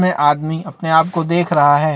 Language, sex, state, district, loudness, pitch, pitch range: Hindi, male, Chhattisgarh, Bastar, -16 LUFS, 160 Hz, 150-175 Hz